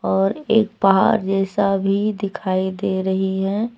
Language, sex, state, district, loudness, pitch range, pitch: Hindi, female, Jharkhand, Deoghar, -19 LUFS, 190-205 Hz, 195 Hz